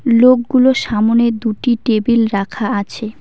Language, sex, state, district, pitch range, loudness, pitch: Bengali, female, West Bengal, Cooch Behar, 215-245 Hz, -14 LUFS, 235 Hz